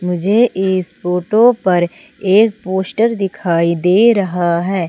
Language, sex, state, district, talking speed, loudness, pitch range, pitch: Hindi, female, Madhya Pradesh, Umaria, 125 wpm, -14 LUFS, 180-215 Hz, 190 Hz